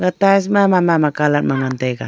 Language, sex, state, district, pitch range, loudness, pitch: Wancho, female, Arunachal Pradesh, Longding, 145-195 Hz, -15 LUFS, 165 Hz